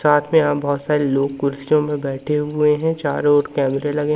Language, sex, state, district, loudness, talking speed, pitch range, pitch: Hindi, male, Madhya Pradesh, Umaria, -19 LUFS, 215 wpm, 140-150 Hz, 145 Hz